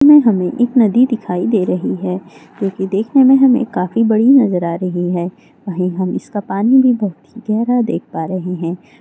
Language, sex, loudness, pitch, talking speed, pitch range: Maithili, female, -15 LUFS, 200 Hz, 195 wpm, 180-245 Hz